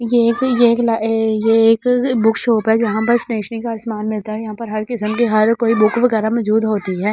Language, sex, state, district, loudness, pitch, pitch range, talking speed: Hindi, female, Delhi, New Delhi, -16 LUFS, 225 Hz, 215-235 Hz, 210 wpm